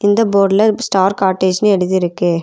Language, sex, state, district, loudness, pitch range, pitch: Tamil, female, Tamil Nadu, Nilgiris, -14 LUFS, 185-205 Hz, 195 Hz